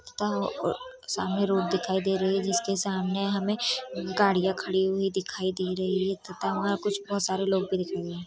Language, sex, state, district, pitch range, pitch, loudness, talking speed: Hindi, female, Bihar, Saharsa, 185-200 Hz, 190 Hz, -28 LUFS, 180 wpm